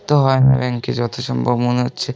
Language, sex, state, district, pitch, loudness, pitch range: Bengali, male, West Bengal, North 24 Parganas, 125 Hz, -17 LUFS, 120-135 Hz